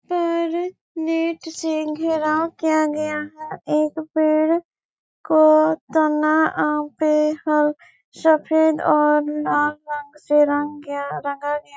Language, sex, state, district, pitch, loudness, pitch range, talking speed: Hindi, female, Chhattisgarh, Bastar, 310 Hz, -20 LUFS, 300-320 Hz, 120 wpm